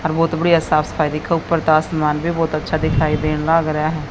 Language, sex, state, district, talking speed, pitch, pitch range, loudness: Hindi, female, Haryana, Jhajjar, 235 wpm, 155 Hz, 155-165 Hz, -18 LUFS